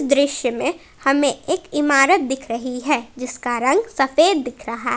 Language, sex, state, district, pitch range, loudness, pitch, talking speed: Hindi, female, Jharkhand, Palamu, 250-295 Hz, -19 LUFS, 275 Hz, 170 wpm